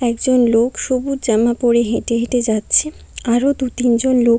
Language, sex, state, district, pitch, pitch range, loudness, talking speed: Bengali, female, West Bengal, Kolkata, 240 Hz, 235-255 Hz, -16 LUFS, 165 wpm